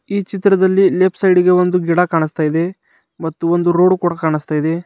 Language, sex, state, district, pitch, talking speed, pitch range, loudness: Kannada, male, Karnataka, Bidar, 180 Hz, 185 wpm, 165-190 Hz, -15 LUFS